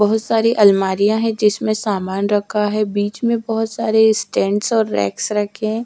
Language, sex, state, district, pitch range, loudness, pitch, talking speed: Hindi, female, Odisha, Malkangiri, 205-225 Hz, -17 LUFS, 215 Hz, 175 wpm